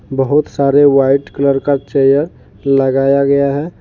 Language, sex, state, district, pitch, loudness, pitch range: Hindi, male, Jharkhand, Deoghar, 140 Hz, -13 LUFS, 135-140 Hz